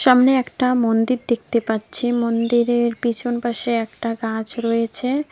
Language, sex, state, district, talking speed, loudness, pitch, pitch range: Bengali, female, West Bengal, Cooch Behar, 125 wpm, -20 LUFS, 235 Hz, 230-245 Hz